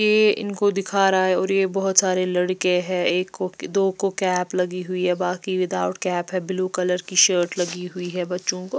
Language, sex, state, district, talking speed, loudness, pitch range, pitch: Hindi, female, Bihar, West Champaran, 225 wpm, -22 LUFS, 180-195 Hz, 185 Hz